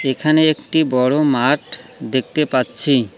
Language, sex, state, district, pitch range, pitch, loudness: Bengali, male, West Bengal, Cooch Behar, 130-155 Hz, 135 Hz, -17 LUFS